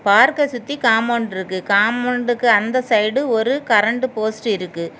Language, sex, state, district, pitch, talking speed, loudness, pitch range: Tamil, female, Tamil Nadu, Kanyakumari, 230 Hz, 120 wpm, -17 LUFS, 210-245 Hz